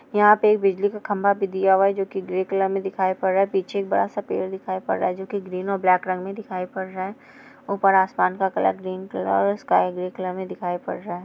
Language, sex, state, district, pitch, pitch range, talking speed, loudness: Hindi, female, Bihar, Sitamarhi, 190 Hz, 185-200 Hz, 295 wpm, -23 LUFS